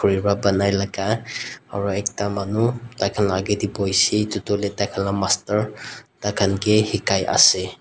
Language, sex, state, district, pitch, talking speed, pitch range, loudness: Nagamese, male, Nagaland, Dimapur, 100 Hz, 145 wpm, 100-105 Hz, -21 LUFS